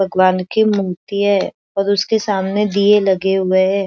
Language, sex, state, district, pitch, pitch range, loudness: Hindi, female, Maharashtra, Aurangabad, 195 Hz, 190-205 Hz, -16 LUFS